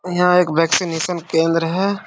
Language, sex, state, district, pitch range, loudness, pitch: Hindi, male, Jharkhand, Sahebganj, 165-180 Hz, -17 LUFS, 175 Hz